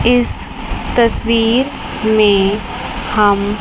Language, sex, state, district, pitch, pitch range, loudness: Hindi, female, Chandigarh, Chandigarh, 220 Hz, 205-235 Hz, -15 LUFS